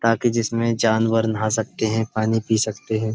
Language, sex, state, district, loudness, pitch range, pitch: Hindi, male, Uttar Pradesh, Budaun, -21 LUFS, 110-115 Hz, 110 Hz